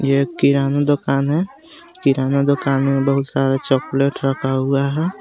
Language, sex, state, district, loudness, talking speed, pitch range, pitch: Hindi, male, Jharkhand, Garhwa, -18 LUFS, 150 wpm, 135-145 Hz, 140 Hz